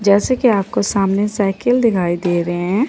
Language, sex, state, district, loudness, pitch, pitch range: Hindi, female, Chandigarh, Chandigarh, -16 LUFS, 200 Hz, 185-230 Hz